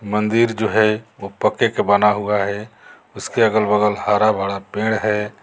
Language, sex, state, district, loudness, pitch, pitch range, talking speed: Hindi, male, Jharkhand, Garhwa, -18 LUFS, 105 Hz, 105-110 Hz, 175 wpm